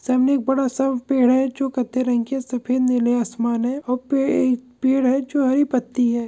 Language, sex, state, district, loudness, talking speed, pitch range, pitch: Hindi, female, Goa, North and South Goa, -20 LUFS, 240 wpm, 245-270 Hz, 255 Hz